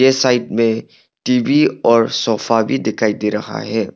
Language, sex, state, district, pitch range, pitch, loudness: Hindi, male, Arunachal Pradesh, Longding, 110-130 Hz, 115 Hz, -16 LUFS